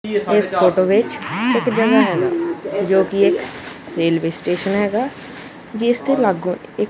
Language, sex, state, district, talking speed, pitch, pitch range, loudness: Punjabi, male, Punjab, Kapurthala, 140 wpm, 205 Hz, 185-235 Hz, -18 LUFS